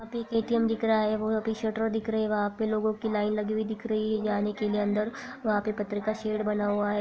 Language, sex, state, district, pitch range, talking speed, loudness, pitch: Hindi, female, Bihar, Purnia, 210-220 Hz, 290 wpm, -29 LUFS, 215 Hz